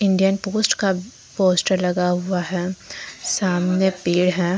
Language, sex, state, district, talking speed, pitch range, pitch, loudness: Hindi, female, Jharkhand, Deoghar, 130 wpm, 180-195 Hz, 185 Hz, -20 LUFS